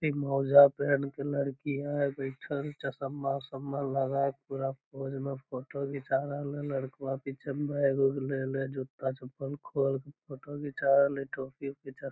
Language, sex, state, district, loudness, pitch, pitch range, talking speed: Magahi, female, Bihar, Lakhisarai, -31 LUFS, 140 Hz, 135-140 Hz, 160 wpm